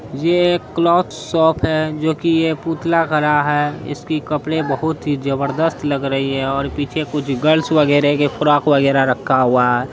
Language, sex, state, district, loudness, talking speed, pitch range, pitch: Hindi, female, Bihar, Araria, -17 LUFS, 165 wpm, 140-160 Hz, 150 Hz